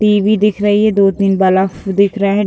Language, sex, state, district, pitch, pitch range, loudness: Hindi, female, Uttar Pradesh, Deoria, 200 Hz, 195-210 Hz, -13 LUFS